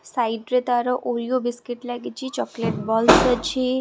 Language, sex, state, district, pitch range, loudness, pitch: Odia, female, Odisha, Khordha, 235-250 Hz, -22 LUFS, 245 Hz